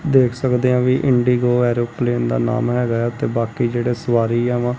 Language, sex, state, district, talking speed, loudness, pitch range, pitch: Punjabi, male, Punjab, Kapurthala, 200 wpm, -18 LUFS, 120-125 Hz, 120 Hz